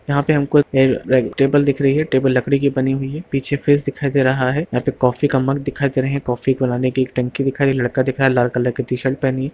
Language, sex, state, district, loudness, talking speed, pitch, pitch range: Hindi, female, Bihar, Lakhisarai, -18 LUFS, 290 wpm, 135 Hz, 130-140 Hz